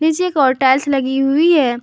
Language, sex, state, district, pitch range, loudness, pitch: Hindi, female, Jharkhand, Garhwa, 265-315 Hz, -14 LUFS, 275 Hz